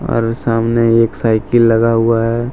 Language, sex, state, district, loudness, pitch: Hindi, male, Jharkhand, Deoghar, -13 LUFS, 115 Hz